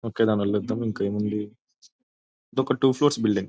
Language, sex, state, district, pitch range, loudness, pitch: Telugu, male, Telangana, Nalgonda, 105-130 Hz, -25 LUFS, 115 Hz